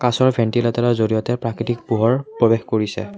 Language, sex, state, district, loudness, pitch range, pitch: Assamese, male, Assam, Kamrup Metropolitan, -19 LUFS, 110-120 Hz, 115 Hz